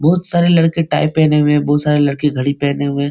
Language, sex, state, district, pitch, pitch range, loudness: Hindi, male, Bihar, Supaul, 150 Hz, 145-165 Hz, -14 LUFS